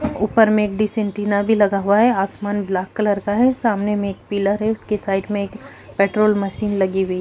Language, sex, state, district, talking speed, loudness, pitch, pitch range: Hindi, female, Uttar Pradesh, Jalaun, 235 wpm, -19 LUFS, 205 Hz, 200-215 Hz